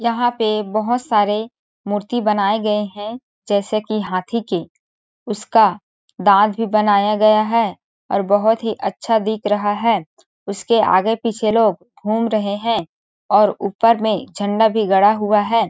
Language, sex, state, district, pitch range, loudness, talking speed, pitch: Hindi, female, Chhattisgarh, Balrampur, 205-225 Hz, -17 LUFS, 155 wpm, 215 Hz